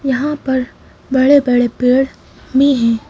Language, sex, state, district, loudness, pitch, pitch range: Hindi, female, Madhya Pradesh, Bhopal, -14 LUFS, 265 Hz, 250-275 Hz